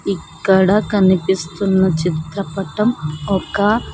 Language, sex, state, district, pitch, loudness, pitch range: Telugu, female, Andhra Pradesh, Sri Satya Sai, 190 Hz, -17 LUFS, 175-200 Hz